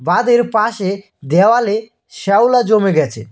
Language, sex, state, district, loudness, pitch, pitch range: Bengali, male, West Bengal, Cooch Behar, -14 LUFS, 205 Hz, 175-230 Hz